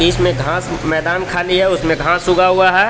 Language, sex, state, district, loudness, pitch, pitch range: Hindi, male, Jharkhand, Palamu, -14 LUFS, 175 Hz, 160-185 Hz